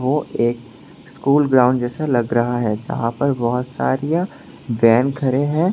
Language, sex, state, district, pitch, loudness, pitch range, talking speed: Hindi, male, Tripura, West Tripura, 125 Hz, -19 LUFS, 120-140 Hz, 155 wpm